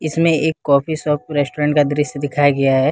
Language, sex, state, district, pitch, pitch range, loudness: Hindi, male, Jharkhand, Ranchi, 150 Hz, 145-155 Hz, -17 LUFS